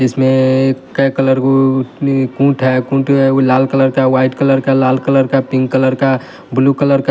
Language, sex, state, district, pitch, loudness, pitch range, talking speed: Hindi, male, Bihar, West Champaran, 135 Hz, -13 LUFS, 130-135 Hz, 185 wpm